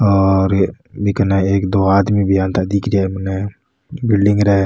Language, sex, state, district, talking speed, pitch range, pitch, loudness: Rajasthani, male, Rajasthan, Nagaur, 170 wpm, 95-100 Hz, 100 Hz, -16 LUFS